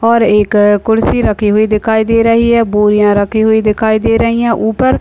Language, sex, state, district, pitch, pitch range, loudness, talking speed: Hindi, male, Uttar Pradesh, Deoria, 220 Hz, 210-230 Hz, -11 LUFS, 215 wpm